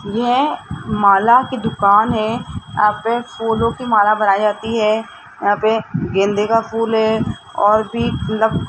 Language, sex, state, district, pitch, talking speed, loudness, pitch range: Hindi, female, Rajasthan, Jaipur, 220 Hz, 150 wpm, -16 LUFS, 210-230 Hz